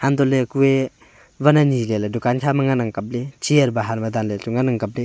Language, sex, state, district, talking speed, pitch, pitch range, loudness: Wancho, male, Arunachal Pradesh, Longding, 250 wpm, 125 Hz, 115-135 Hz, -19 LUFS